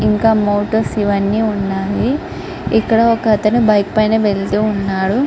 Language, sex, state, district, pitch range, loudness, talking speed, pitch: Telugu, female, Andhra Pradesh, Guntur, 200-220 Hz, -15 LUFS, 115 wpm, 215 Hz